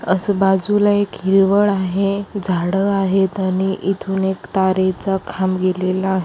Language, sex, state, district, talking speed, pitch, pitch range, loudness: Marathi, female, Maharashtra, Aurangabad, 135 wpm, 190 Hz, 190-195 Hz, -18 LUFS